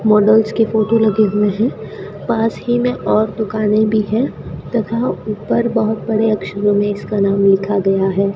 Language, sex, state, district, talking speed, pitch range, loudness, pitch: Hindi, female, Rajasthan, Bikaner, 170 wpm, 205-225 Hz, -16 LUFS, 215 Hz